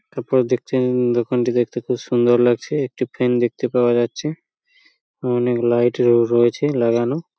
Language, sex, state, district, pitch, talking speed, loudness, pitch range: Bengali, male, West Bengal, Purulia, 125 Hz, 140 wpm, -19 LUFS, 120-130 Hz